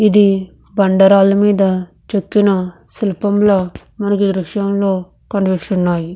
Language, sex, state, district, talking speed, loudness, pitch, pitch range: Telugu, female, Andhra Pradesh, Visakhapatnam, 80 wpm, -15 LUFS, 195 Hz, 185-205 Hz